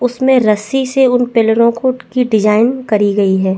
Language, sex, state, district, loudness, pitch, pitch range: Hindi, female, Chhattisgarh, Bastar, -13 LUFS, 235 Hz, 210-255 Hz